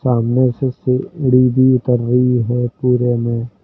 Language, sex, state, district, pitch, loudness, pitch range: Hindi, male, Uttar Pradesh, Lucknow, 125 Hz, -15 LUFS, 120-130 Hz